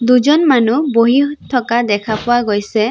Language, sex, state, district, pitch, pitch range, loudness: Assamese, female, Assam, Sonitpur, 240 Hz, 220-265 Hz, -14 LUFS